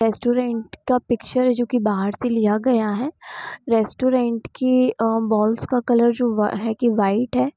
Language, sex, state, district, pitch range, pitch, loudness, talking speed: Hindi, female, Bihar, Sitamarhi, 220-250 Hz, 235 Hz, -20 LUFS, 180 wpm